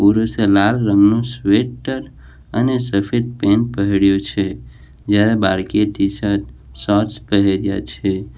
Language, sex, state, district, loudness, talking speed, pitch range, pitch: Gujarati, male, Gujarat, Valsad, -17 LUFS, 115 wpm, 100-110 Hz, 100 Hz